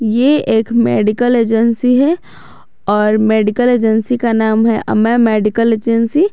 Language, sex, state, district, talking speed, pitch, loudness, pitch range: Hindi, female, Jharkhand, Garhwa, 140 wpm, 230 Hz, -13 LUFS, 220-245 Hz